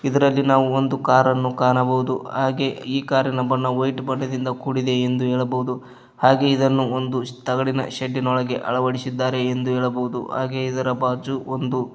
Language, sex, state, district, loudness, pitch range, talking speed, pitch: Kannada, male, Karnataka, Koppal, -21 LUFS, 125-130 Hz, 135 wpm, 130 Hz